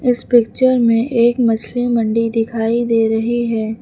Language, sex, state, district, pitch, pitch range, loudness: Hindi, female, Uttar Pradesh, Lucknow, 230 Hz, 225-240 Hz, -16 LUFS